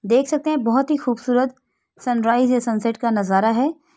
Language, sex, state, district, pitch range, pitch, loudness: Hindi, female, Uttar Pradesh, Etah, 230-270 Hz, 245 Hz, -20 LUFS